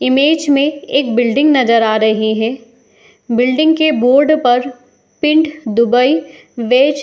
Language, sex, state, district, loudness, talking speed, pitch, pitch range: Hindi, female, Uttar Pradesh, Etah, -13 LUFS, 145 wpm, 255 Hz, 235-290 Hz